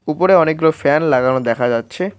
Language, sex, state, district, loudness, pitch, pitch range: Bengali, male, West Bengal, Cooch Behar, -15 LUFS, 155 Hz, 130-160 Hz